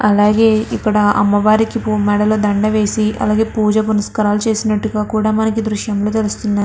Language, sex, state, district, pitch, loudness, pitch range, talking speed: Telugu, female, Andhra Pradesh, Krishna, 215 Hz, -15 LUFS, 210-220 Hz, 145 wpm